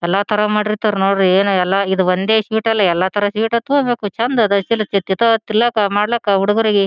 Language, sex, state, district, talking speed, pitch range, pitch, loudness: Kannada, female, Karnataka, Gulbarga, 155 wpm, 195-225 Hz, 210 Hz, -16 LUFS